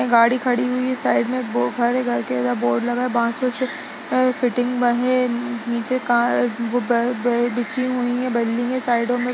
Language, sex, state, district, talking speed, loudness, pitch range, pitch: Hindi, female, Uttar Pradesh, Jyotiba Phule Nagar, 205 wpm, -21 LUFS, 235-250 Hz, 245 Hz